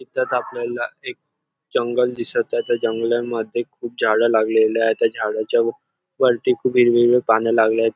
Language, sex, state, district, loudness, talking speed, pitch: Marathi, male, Maharashtra, Nagpur, -19 LUFS, 160 wpm, 120 Hz